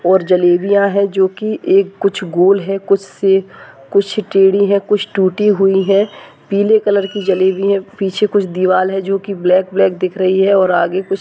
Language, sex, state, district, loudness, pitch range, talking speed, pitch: Hindi, male, Goa, North and South Goa, -14 LUFS, 190-200 Hz, 195 wpm, 195 Hz